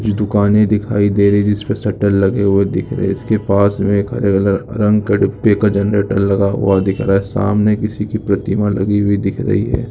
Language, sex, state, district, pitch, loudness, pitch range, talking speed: Hindi, male, Uttar Pradesh, Muzaffarnagar, 100 Hz, -15 LUFS, 100-105 Hz, 220 wpm